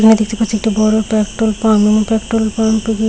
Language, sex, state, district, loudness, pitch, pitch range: Bengali, female, West Bengal, Paschim Medinipur, -14 LUFS, 220 Hz, 215-220 Hz